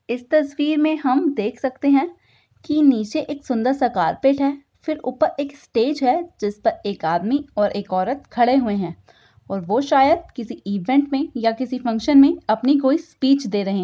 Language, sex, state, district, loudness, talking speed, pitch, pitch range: Hindi, female, Uttar Pradesh, Budaun, -20 LUFS, 190 wpm, 265 Hz, 225-290 Hz